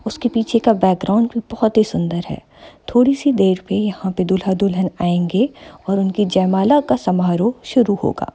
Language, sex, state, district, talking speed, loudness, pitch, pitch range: Hindi, female, Uttar Pradesh, Jyotiba Phule Nagar, 180 wpm, -17 LUFS, 200 Hz, 185-230 Hz